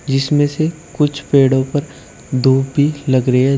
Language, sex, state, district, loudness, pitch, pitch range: Hindi, male, Uttar Pradesh, Shamli, -16 LUFS, 140 Hz, 135-145 Hz